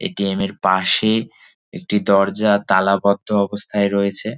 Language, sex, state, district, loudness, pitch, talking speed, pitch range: Bengali, male, West Bengal, Dakshin Dinajpur, -18 LUFS, 100 Hz, 110 wpm, 100-105 Hz